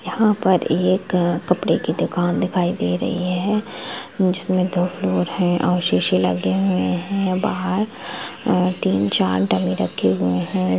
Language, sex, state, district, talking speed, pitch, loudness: Hindi, female, Chhattisgarh, Rajnandgaon, 145 wpm, 175 Hz, -20 LUFS